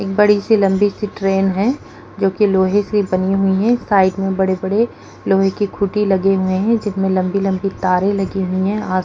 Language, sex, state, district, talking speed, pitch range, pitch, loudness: Hindi, female, Uttar Pradesh, Hamirpur, 190 wpm, 190-205 Hz, 195 Hz, -16 LUFS